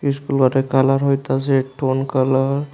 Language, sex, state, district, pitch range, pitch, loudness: Bengali, male, Tripura, West Tripura, 130-140 Hz, 135 Hz, -18 LUFS